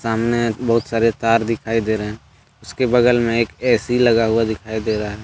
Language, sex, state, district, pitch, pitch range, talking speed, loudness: Hindi, male, Jharkhand, Deoghar, 115 Hz, 110-120 Hz, 220 wpm, -18 LUFS